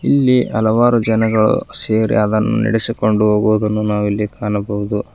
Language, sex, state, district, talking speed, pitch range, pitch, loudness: Kannada, female, Karnataka, Koppal, 115 wpm, 105-115 Hz, 110 Hz, -16 LUFS